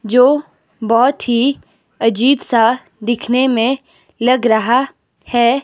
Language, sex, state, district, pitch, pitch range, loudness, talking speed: Hindi, female, Himachal Pradesh, Shimla, 245 Hz, 230-260 Hz, -15 LUFS, 105 wpm